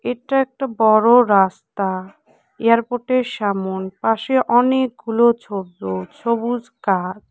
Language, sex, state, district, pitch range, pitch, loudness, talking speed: Bengali, female, West Bengal, Cooch Behar, 195-245 Hz, 230 Hz, -18 LUFS, 90 wpm